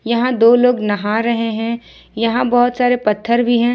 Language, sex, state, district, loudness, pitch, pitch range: Hindi, female, Jharkhand, Ranchi, -15 LUFS, 235 Hz, 230-245 Hz